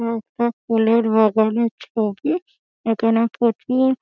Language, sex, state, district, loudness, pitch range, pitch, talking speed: Bengali, female, West Bengal, Dakshin Dinajpur, -20 LUFS, 225-240 Hz, 230 Hz, 105 wpm